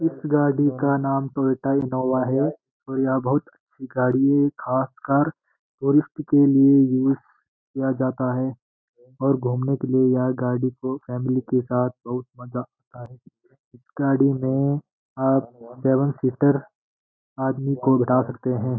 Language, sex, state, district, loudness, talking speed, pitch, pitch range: Hindi, male, Uttarakhand, Uttarkashi, -22 LUFS, 140 wpm, 130 Hz, 125-140 Hz